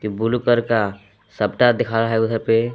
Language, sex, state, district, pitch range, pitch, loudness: Hindi, male, Jharkhand, Palamu, 105-120 Hz, 115 Hz, -19 LUFS